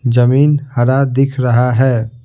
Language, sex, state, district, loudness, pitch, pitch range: Hindi, male, Bihar, Patna, -13 LUFS, 125 Hz, 120-135 Hz